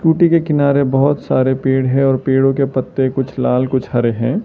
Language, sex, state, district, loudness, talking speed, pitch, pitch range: Hindi, male, Arunachal Pradesh, Lower Dibang Valley, -15 LUFS, 215 wpm, 135 Hz, 130-140 Hz